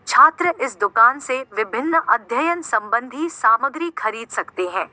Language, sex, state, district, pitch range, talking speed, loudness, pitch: Hindi, female, Uttar Pradesh, Jyotiba Phule Nagar, 220-325 Hz, 135 wpm, -19 LUFS, 255 Hz